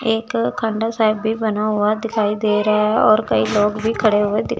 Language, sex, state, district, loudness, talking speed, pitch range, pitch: Hindi, female, Chandigarh, Chandigarh, -18 LUFS, 220 wpm, 210-225 Hz, 215 Hz